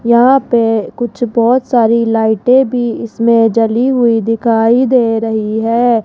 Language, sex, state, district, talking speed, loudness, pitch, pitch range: Hindi, female, Rajasthan, Jaipur, 140 wpm, -12 LUFS, 235 Hz, 225-245 Hz